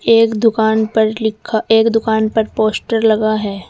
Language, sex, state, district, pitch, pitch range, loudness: Hindi, female, Uttar Pradesh, Saharanpur, 220 Hz, 215-225 Hz, -15 LUFS